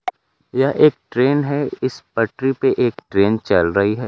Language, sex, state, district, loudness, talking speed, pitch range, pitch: Hindi, male, Bihar, Kaimur, -18 LUFS, 175 wpm, 110-135 Hz, 125 Hz